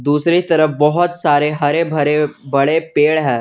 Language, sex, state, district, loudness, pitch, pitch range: Hindi, male, Jharkhand, Garhwa, -15 LUFS, 150 Hz, 145-160 Hz